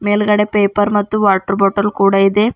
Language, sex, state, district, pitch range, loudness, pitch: Kannada, female, Karnataka, Bidar, 195-210 Hz, -14 LUFS, 205 Hz